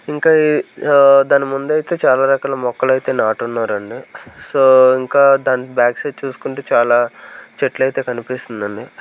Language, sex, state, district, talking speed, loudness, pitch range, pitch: Telugu, male, Andhra Pradesh, Sri Satya Sai, 140 wpm, -15 LUFS, 125-140 Hz, 130 Hz